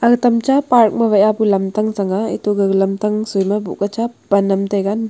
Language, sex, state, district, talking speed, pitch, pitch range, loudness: Wancho, female, Arunachal Pradesh, Longding, 245 wpm, 210 Hz, 200-225 Hz, -16 LUFS